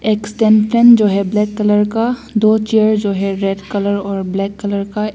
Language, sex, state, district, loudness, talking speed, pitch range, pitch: Hindi, female, Assam, Hailakandi, -14 LUFS, 200 wpm, 200-215 Hz, 210 Hz